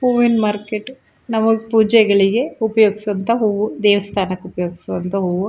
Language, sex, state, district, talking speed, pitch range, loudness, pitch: Kannada, female, Karnataka, Shimoga, 110 wpm, 195-225 Hz, -17 LUFS, 210 Hz